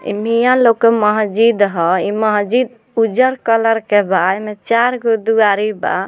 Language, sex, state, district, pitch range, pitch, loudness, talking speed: Bhojpuri, female, Bihar, Muzaffarpur, 205-235 Hz, 225 Hz, -14 LUFS, 170 wpm